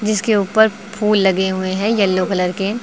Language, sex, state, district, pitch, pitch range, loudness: Hindi, female, Uttar Pradesh, Lucknow, 205 Hz, 190-215 Hz, -16 LUFS